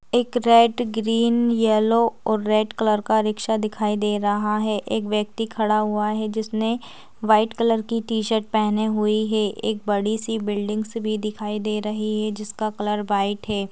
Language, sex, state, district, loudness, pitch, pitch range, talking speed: Hindi, female, Chhattisgarh, Raigarh, -22 LUFS, 215 Hz, 210-225 Hz, 180 wpm